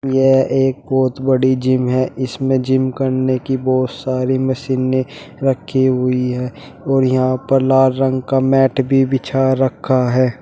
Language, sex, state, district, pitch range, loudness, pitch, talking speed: Hindi, male, Uttar Pradesh, Shamli, 130-135 Hz, -16 LUFS, 130 Hz, 155 wpm